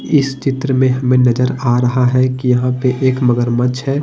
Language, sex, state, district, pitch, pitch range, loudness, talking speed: Hindi, male, Bihar, Patna, 130 Hz, 125-130 Hz, -14 LUFS, 210 wpm